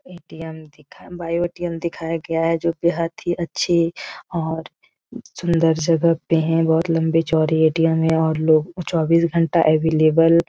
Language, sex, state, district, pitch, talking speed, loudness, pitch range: Hindi, female, Bihar, Jahanabad, 165 Hz, 165 wpm, -19 LUFS, 160-170 Hz